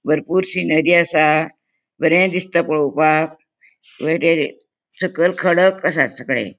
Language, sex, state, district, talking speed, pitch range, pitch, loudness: Konkani, female, Goa, North and South Goa, 90 wpm, 155-180 Hz, 165 Hz, -17 LUFS